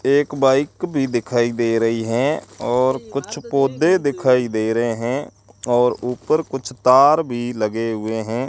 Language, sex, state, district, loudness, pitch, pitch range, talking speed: Hindi, male, Rajasthan, Bikaner, -19 LUFS, 125 Hz, 115-135 Hz, 155 wpm